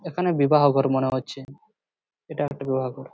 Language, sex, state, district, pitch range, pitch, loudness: Bengali, male, West Bengal, Purulia, 130-145 Hz, 140 Hz, -23 LUFS